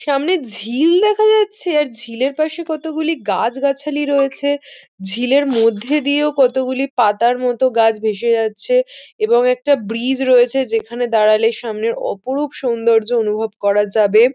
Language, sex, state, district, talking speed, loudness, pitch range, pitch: Bengali, female, West Bengal, North 24 Parganas, 130 wpm, -16 LUFS, 225-290 Hz, 255 Hz